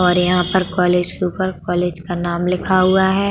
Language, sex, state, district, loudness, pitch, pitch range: Hindi, female, Uttar Pradesh, Budaun, -17 LUFS, 180 Hz, 175-185 Hz